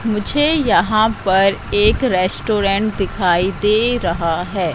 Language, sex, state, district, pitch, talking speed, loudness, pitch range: Hindi, female, Madhya Pradesh, Katni, 205 Hz, 115 wpm, -16 LUFS, 185-220 Hz